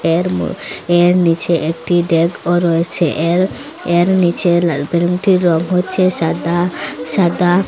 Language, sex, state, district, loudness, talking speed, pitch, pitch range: Bengali, female, Assam, Hailakandi, -15 LUFS, 125 wpm, 175 Hz, 165-180 Hz